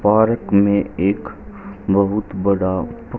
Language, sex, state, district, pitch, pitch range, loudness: Hindi, male, Haryana, Charkhi Dadri, 100 Hz, 95-100 Hz, -18 LUFS